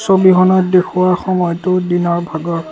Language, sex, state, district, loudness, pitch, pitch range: Assamese, male, Assam, Kamrup Metropolitan, -14 LUFS, 180 Hz, 170-185 Hz